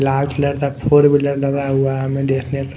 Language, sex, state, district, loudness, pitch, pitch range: Hindi, female, Himachal Pradesh, Shimla, -17 LUFS, 140 Hz, 135-140 Hz